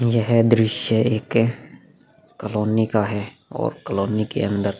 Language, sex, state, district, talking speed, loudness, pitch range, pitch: Hindi, male, Goa, North and South Goa, 135 wpm, -21 LUFS, 105-115 Hz, 110 Hz